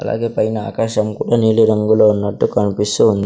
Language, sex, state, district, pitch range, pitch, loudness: Telugu, male, Andhra Pradesh, Sri Satya Sai, 105-110 Hz, 110 Hz, -16 LUFS